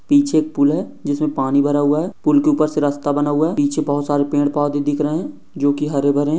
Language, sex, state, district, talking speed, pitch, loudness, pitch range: Hindi, male, Maharashtra, Dhule, 280 wpm, 145 Hz, -18 LUFS, 145-150 Hz